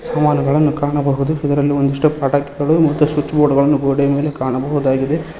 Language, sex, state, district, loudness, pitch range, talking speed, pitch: Kannada, male, Karnataka, Koppal, -16 LUFS, 140-150 Hz, 145 wpm, 145 Hz